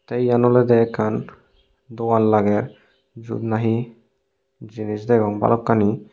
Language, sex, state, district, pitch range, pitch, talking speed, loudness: Chakma, male, Tripura, Unakoti, 110-120 Hz, 115 Hz, 110 wpm, -19 LUFS